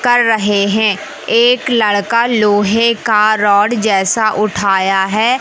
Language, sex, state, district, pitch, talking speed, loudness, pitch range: Hindi, male, Madhya Pradesh, Katni, 215 Hz, 120 wpm, -12 LUFS, 205-235 Hz